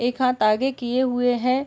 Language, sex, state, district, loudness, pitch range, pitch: Hindi, female, Uttar Pradesh, Varanasi, -21 LUFS, 245-260 Hz, 250 Hz